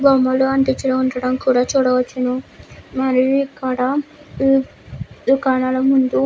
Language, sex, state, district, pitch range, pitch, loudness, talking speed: Telugu, female, Andhra Pradesh, Guntur, 255-270 Hz, 260 Hz, -18 LUFS, 95 wpm